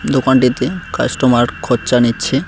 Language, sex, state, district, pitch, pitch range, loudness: Bengali, male, West Bengal, Cooch Behar, 130 Hz, 120-130 Hz, -14 LUFS